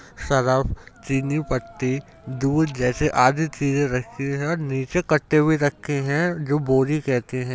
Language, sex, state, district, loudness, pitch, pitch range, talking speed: Hindi, male, Uttar Pradesh, Jyotiba Phule Nagar, -22 LUFS, 140 Hz, 130-150 Hz, 145 wpm